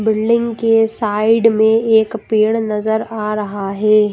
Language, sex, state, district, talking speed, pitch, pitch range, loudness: Hindi, female, Madhya Pradesh, Bhopal, 145 wpm, 220 Hz, 215-225 Hz, -15 LUFS